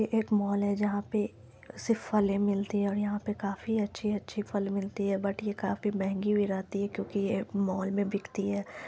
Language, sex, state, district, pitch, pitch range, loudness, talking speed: Hindi, female, Bihar, Lakhisarai, 200 Hz, 200-210 Hz, -31 LUFS, 225 wpm